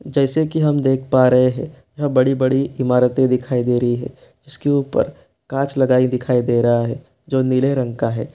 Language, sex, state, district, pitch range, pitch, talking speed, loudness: Hindi, male, Bihar, East Champaran, 125-140 Hz, 130 Hz, 195 wpm, -18 LUFS